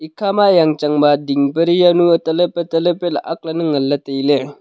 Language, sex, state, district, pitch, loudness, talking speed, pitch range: Wancho, male, Arunachal Pradesh, Longding, 165 Hz, -15 LUFS, 260 wpm, 145-175 Hz